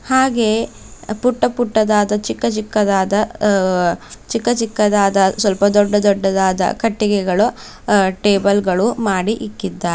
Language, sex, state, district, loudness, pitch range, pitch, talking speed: Kannada, female, Karnataka, Bidar, -16 LUFS, 195-220 Hz, 205 Hz, 85 wpm